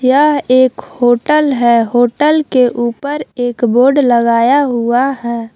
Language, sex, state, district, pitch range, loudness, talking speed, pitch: Hindi, female, Jharkhand, Palamu, 235-280 Hz, -12 LUFS, 130 wpm, 250 Hz